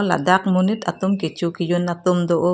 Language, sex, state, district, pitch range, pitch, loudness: Karbi, female, Assam, Karbi Anglong, 175-185 Hz, 180 Hz, -20 LUFS